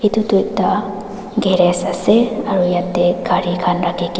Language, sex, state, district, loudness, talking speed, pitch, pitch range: Nagamese, female, Nagaland, Dimapur, -16 LUFS, 155 wpm, 185 Hz, 180-205 Hz